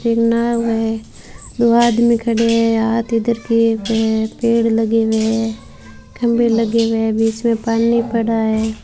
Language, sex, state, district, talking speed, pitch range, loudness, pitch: Hindi, female, Rajasthan, Bikaner, 170 wpm, 225-230 Hz, -16 LUFS, 230 Hz